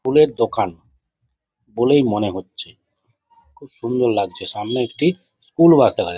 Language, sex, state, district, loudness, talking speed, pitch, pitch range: Bengali, male, West Bengal, Jhargram, -18 LUFS, 135 wpm, 120 Hz, 105-150 Hz